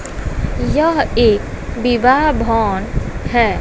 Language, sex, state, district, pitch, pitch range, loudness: Hindi, female, Bihar, West Champaran, 240 Hz, 225-280 Hz, -16 LUFS